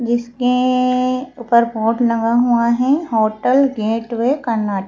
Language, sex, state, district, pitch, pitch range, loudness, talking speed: Hindi, female, Madhya Pradesh, Bhopal, 240 Hz, 230-255 Hz, -17 LUFS, 110 wpm